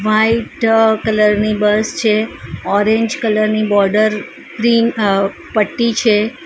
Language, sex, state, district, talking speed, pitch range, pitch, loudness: Gujarati, female, Gujarat, Valsad, 120 wpm, 210-225 Hz, 215 Hz, -14 LUFS